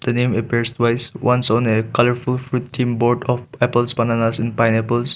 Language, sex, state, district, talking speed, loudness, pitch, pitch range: English, male, Nagaland, Kohima, 185 wpm, -18 LUFS, 120 Hz, 115-125 Hz